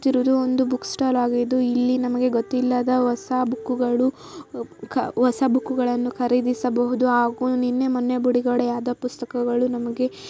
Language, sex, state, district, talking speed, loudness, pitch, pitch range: Kannada, female, Karnataka, Raichur, 115 wpm, -22 LUFS, 250 Hz, 245-255 Hz